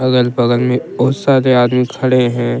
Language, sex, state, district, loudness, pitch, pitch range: Hindi, male, Jharkhand, Deoghar, -14 LUFS, 125 Hz, 120-130 Hz